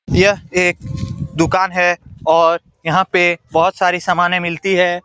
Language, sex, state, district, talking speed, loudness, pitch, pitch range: Hindi, male, Bihar, Saran, 140 wpm, -15 LUFS, 175 Hz, 165-180 Hz